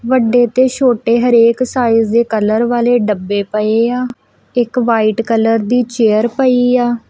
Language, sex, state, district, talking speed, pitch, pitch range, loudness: Punjabi, female, Punjab, Kapurthala, 145 wpm, 235 Hz, 225-245 Hz, -13 LUFS